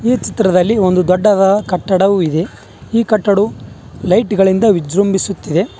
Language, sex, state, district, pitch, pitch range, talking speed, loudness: Kannada, male, Karnataka, Bangalore, 195 Hz, 185-210 Hz, 115 wpm, -13 LUFS